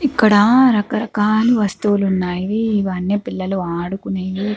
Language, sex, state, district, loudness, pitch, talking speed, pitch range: Telugu, female, Andhra Pradesh, Chittoor, -17 LUFS, 205 Hz, 105 wpm, 190-215 Hz